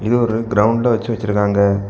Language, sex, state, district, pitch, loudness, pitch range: Tamil, male, Tamil Nadu, Kanyakumari, 110 Hz, -16 LUFS, 100-115 Hz